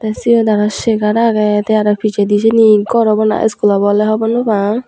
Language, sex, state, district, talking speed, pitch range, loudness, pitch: Chakma, female, Tripura, Unakoti, 195 wpm, 210-225 Hz, -12 LUFS, 215 Hz